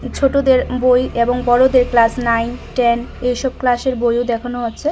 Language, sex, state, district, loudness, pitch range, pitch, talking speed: Bengali, female, Tripura, West Tripura, -16 LUFS, 235-255 Hz, 245 Hz, 145 wpm